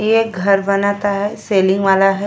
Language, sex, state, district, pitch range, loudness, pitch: Bhojpuri, female, Uttar Pradesh, Ghazipur, 195-205 Hz, -15 LUFS, 200 Hz